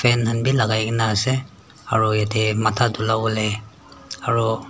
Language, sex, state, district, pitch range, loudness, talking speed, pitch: Nagamese, male, Nagaland, Dimapur, 110-120 Hz, -20 LUFS, 130 wpm, 110 Hz